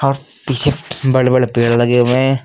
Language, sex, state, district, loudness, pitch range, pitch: Hindi, male, Uttar Pradesh, Lucknow, -15 LUFS, 125-135 Hz, 130 Hz